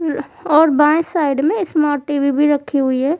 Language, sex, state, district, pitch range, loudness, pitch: Hindi, female, Bihar, Kaimur, 285-315 Hz, -16 LUFS, 295 Hz